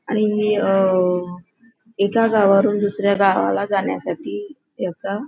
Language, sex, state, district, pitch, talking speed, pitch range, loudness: Marathi, female, Maharashtra, Nagpur, 205 Hz, 100 wpm, 195-225 Hz, -19 LUFS